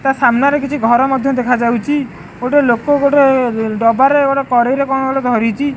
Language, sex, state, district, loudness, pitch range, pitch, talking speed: Odia, male, Odisha, Khordha, -13 LUFS, 240-275 Hz, 265 Hz, 210 wpm